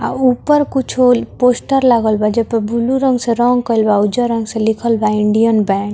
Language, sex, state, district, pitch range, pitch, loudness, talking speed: Bhojpuri, female, Bihar, Muzaffarpur, 220-250 Hz, 230 Hz, -14 LUFS, 220 wpm